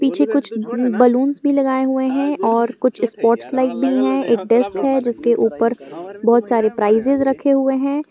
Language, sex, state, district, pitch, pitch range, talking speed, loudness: Hindi, female, Jharkhand, Garhwa, 250 Hz, 230-270 Hz, 180 wpm, -17 LUFS